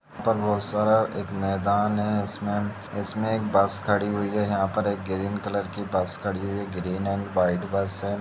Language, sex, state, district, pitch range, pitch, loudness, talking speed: Hindi, male, Bihar, Purnia, 100-105 Hz, 100 Hz, -25 LUFS, 205 wpm